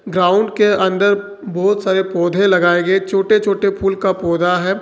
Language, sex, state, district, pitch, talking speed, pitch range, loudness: Hindi, male, Jharkhand, Ranchi, 190 Hz, 175 wpm, 185-200 Hz, -15 LUFS